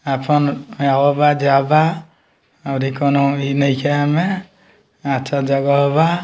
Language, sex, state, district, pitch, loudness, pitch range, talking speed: Bhojpuri, male, Bihar, Muzaffarpur, 140 Hz, -17 LUFS, 140-150 Hz, 75 wpm